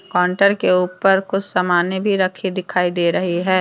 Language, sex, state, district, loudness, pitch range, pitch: Hindi, female, Jharkhand, Deoghar, -18 LUFS, 180-195 Hz, 185 Hz